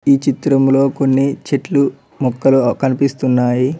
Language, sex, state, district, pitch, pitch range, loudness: Telugu, male, Telangana, Mahabubabad, 135 Hz, 130-140 Hz, -15 LUFS